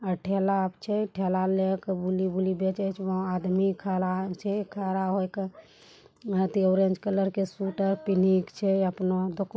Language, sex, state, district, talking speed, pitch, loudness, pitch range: Angika, female, Bihar, Bhagalpur, 90 wpm, 190 Hz, -28 LUFS, 185-195 Hz